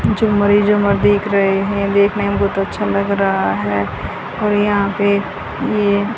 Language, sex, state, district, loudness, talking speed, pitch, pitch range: Hindi, female, Haryana, Charkhi Dadri, -16 LUFS, 145 wpm, 200 Hz, 200-205 Hz